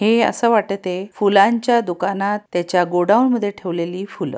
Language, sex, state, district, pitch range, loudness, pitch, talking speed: Marathi, female, Maharashtra, Pune, 180-225 Hz, -18 LUFS, 200 Hz, 135 wpm